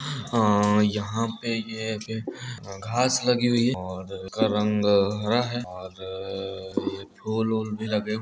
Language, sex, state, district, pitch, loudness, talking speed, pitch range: Hindi, male, Jharkhand, Jamtara, 110 Hz, -26 LUFS, 140 wpm, 100-120 Hz